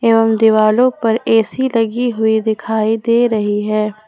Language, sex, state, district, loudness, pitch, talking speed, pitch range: Hindi, female, Jharkhand, Ranchi, -14 LUFS, 225 Hz, 160 wpm, 215-230 Hz